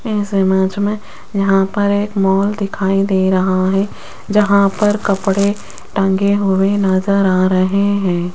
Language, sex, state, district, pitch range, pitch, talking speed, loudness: Hindi, female, Rajasthan, Jaipur, 190-200 Hz, 195 Hz, 145 wpm, -15 LUFS